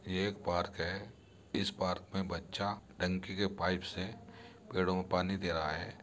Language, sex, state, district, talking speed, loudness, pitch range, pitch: Hindi, male, Uttar Pradesh, Muzaffarnagar, 180 wpm, -37 LUFS, 90-100 Hz, 95 Hz